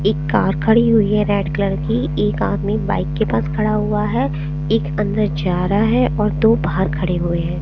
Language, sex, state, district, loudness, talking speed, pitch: Hindi, female, Chandigarh, Chandigarh, -18 LUFS, 215 wpm, 165 Hz